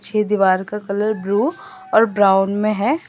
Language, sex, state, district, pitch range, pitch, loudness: Hindi, female, Assam, Sonitpur, 200-220 Hz, 210 Hz, -18 LUFS